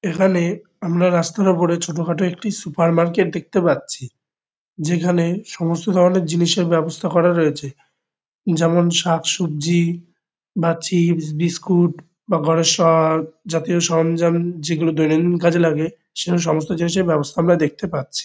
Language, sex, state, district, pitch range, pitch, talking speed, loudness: Bengali, male, West Bengal, Kolkata, 165-175 Hz, 170 Hz, 125 wpm, -18 LUFS